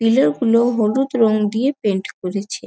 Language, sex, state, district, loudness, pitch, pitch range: Bengali, female, West Bengal, North 24 Parganas, -18 LUFS, 225 Hz, 205-245 Hz